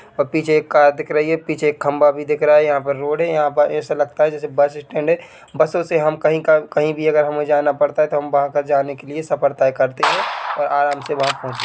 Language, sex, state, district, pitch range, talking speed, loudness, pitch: Hindi, male, Chhattisgarh, Bilaspur, 145-155 Hz, 290 wpm, -18 LUFS, 150 Hz